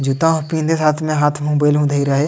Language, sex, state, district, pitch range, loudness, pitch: Sadri, male, Chhattisgarh, Jashpur, 145-155 Hz, -16 LUFS, 150 Hz